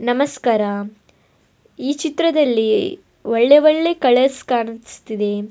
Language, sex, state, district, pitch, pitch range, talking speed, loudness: Kannada, female, Karnataka, Bellary, 250 Hz, 225-300 Hz, 75 wpm, -17 LUFS